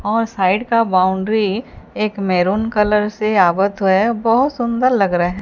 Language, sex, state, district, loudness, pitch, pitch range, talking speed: Hindi, female, Odisha, Sambalpur, -16 LUFS, 210 Hz, 190-225 Hz, 155 wpm